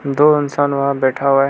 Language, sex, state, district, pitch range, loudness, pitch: Hindi, male, Arunachal Pradesh, Lower Dibang Valley, 140-145 Hz, -15 LUFS, 140 Hz